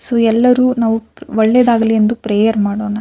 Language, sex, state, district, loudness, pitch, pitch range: Kannada, female, Karnataka, Bijapur, -13 LUFS, 225 Hz, 220-235 Hz